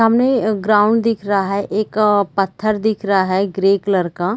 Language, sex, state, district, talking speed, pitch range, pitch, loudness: Hindi, female, Chhattisgarh, Bilaspur, 180 wpm, 195-215 Hz, 205 Hz, -16 LUFS